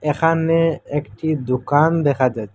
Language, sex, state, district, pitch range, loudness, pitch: Bengali, male, Assam, Hailakandi, 130-165 Hz, -19 LUFS, 145 Hz